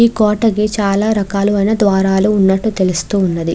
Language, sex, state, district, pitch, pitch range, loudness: Telugu, female, Andhra Pradesh, Krishna, 200 Hz, 190-215 Hz, -14 LUFS